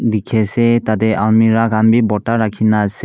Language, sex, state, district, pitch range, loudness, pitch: Nagamese, male, Nagaland, Kohima, 110-115 Hz, -14 LUFS, 110 Hz